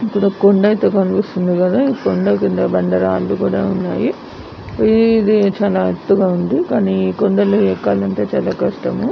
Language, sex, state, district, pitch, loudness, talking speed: Telugu, female, Andhra Pradesh, Anantapur, 185 Hz, -15 LUFS, 125 wpm